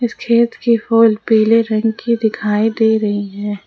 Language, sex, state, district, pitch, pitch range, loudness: Hindi, female, Jharkhand, Ranchi, 220 Hz, 210-230 Hz, -15 LUFS